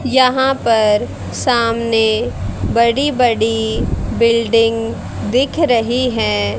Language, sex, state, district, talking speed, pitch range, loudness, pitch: Hindi, female, Haryana, Rohtak, 80 wpm, 210-245 Hz, -15 LUFS, 230 Hz